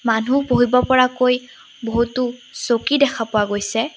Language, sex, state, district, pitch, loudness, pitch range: Assamese, female, Assam, Sonitpur, 245 Hz, -18 LUFS, 230-255 Hz